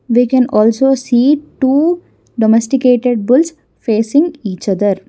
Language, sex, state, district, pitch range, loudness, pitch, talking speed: English, female, Karnataka, Bangalore, 220-275 Hz, -13 LUFS, 250 Hz, 120 wpm